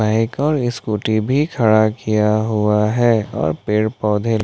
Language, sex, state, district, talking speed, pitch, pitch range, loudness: Hindi, male, Jharkhand, Ranchi, 150 wpm, 110 Hz, 105-120 Hz, -17 LUFS